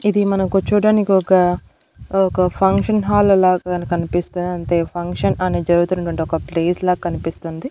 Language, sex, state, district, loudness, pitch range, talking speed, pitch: Telugu, female, Andhra Pradesh, Annamaya, -18 LUFS, 175-195 Hz, 130 wpm, 180 Hz